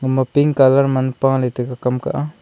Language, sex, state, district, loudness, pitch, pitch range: Wancho, male, Arunachal Pradesh, Longding, -17 LUFS, 130 Hz, 125-135 Hz